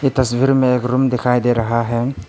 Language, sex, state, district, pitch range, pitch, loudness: Hindi, male, Arunachal Pradesh, Papum Pare, 120-130 Hz, 125 Hz, -17 LUFS